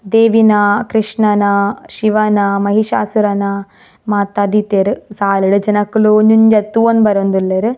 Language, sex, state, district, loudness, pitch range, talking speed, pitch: Tulu, female, Karnataka, Dakshina Kannada, -13 LUFS, 200-215 Hz, 100 wpm, 210 Hz